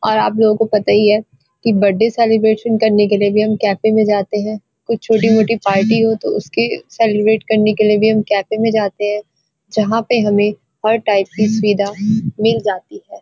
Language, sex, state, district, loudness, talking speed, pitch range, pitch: Hindi, female, Uttarakhand, Uttarkashi, -15 LUFS, 200 wpm, 205-220 Hz, 215 Hz